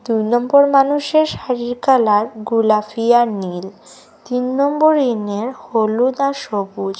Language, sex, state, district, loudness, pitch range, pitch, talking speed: Bengali, female, Assam, Hailakandi, -16 LUFS, 215-275 Hz, 240 Hz, 120 wpm